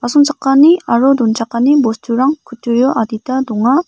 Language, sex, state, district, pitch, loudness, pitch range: Garo, female, Meghalaya, West Garo Hills, 255 Hz, -13 LUFS, 235-280 Hz